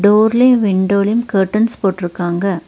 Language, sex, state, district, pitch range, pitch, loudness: Tamil, female, Tamil Nadu, Nilgiris, 190-220 Hz, 200 Hz, -14 LUFS